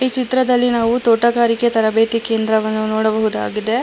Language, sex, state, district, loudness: Kannada, male, Karnataka, Bangalore, -15 LUFS